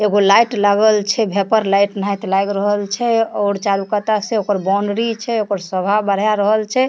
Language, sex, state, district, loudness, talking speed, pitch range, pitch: Maithili, female, Bihar, Supaul, -16 LUFS, 155 wpm, 200-215 Hz, 205 Hz